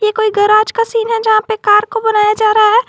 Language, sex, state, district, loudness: Hindi, female, Jharkhand, Garhwa, -12 LUFS